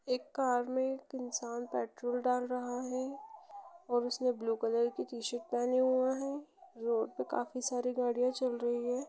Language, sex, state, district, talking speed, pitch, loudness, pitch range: Hindi, female, Chhattisgarh, Rajnandgaon, 170 wpm, 250 Hz, -35 LUFS, 240-260 Hz